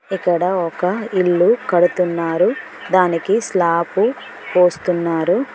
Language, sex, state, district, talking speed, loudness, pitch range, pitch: Telugu, female, Telangana, Mahabubabad, 75 wpm, -17 LUFS, 170-185 Hz, 180 Hz